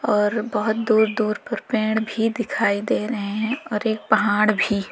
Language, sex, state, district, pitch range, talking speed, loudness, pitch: Hindi, female, Uttar Pradesh, Lalitpur, 210-225 Hz, 185 wpm, -21 LUFS, 220 Hz